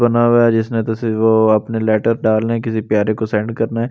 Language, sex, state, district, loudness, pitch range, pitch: Hindi, male, Delhi, New Delhi, -16 LUFS, 110-115 Hz, 110 Hz